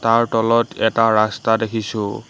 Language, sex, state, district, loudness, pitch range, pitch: Assamese, male, Assam, Hailakandi, -18 LUFS, 110-115 Hz, 110 Hz